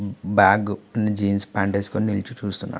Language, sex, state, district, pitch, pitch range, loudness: Telugu, male, Andhra Pradesh, Visakhapatnam, 100 Hz, 100-105 Hz, -22 LUFS